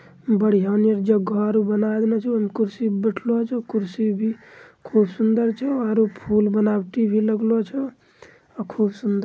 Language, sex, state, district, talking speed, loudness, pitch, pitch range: Angika, male, Bihar, Bhagalpur, 155 wpm, -21 LUFS, 220 Hz, 210-230 Hz